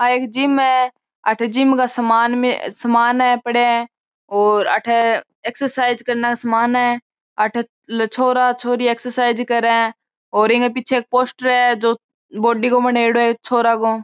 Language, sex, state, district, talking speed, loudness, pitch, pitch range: Marwari, female, Rajasthan, Churu, 165 wpm, -17 LUFS, 240 Hz, 230-250 Hz